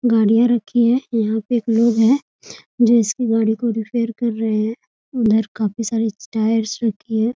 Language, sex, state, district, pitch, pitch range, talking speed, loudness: Hindi, female, Bihar, Muzaffarpur, 225 Hz, 220-235 Hz, 180 wpm, -18 LUFS